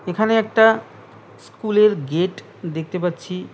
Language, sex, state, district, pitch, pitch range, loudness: Bengali, male, West Bengal, Cooch Behar, 185 Hz, 175-215 Hz, -19 LUFS